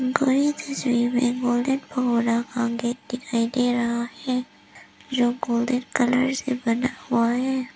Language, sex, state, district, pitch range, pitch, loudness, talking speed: Hindi, female, Arunachal Pradesh, Lower Dibang Valley, 240-260 Hz, 245 Hz, -24 LUFS, 140 wpm